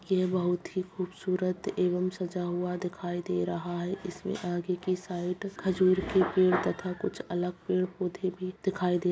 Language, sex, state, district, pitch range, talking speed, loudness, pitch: Hindi, female, Bihar, Bhagalpur, 180-185 Hz, 170 wpm, -31 LUFS, 180 Hz